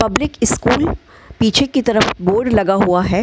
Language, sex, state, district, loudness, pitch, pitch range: Hindi, female, Bihar, Gaya, -15 LUFS, 210 Hz, 190-235 Hz